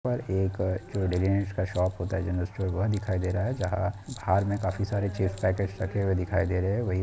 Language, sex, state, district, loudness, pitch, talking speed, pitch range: Hindi, male, Chhattisgarh, Kabirdham, -29 LUFS, 95 Hz, 240 wpm, 95-100 Hz